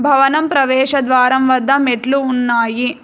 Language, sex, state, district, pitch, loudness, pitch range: Telugu, female, Telangana, Hyderabad, 265 Hz, -14 LUFS, 250-275 Hz